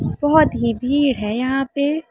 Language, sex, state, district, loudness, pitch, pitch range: Hindi, female, Uttar Pradesh, Muzaffarnagar, -18 LUFS, 270 Hz, 240-290 Hz